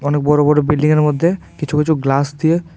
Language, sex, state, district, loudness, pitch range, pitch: Bengali, male, Tripura, West Tripura, -15 LUFS, 150-155 Hz, 150 Hz